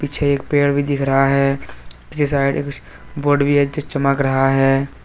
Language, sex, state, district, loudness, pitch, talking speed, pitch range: Hindi, male, Jharkhand, Deoghar, -17 LUFS, 140 Hz, 180 wpm, 135-145 Hz